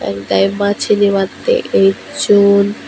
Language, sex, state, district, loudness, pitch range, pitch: Chakma, male, Tripura, Unakoti, -13 LUFS, 190-205 Hz, 200 Hz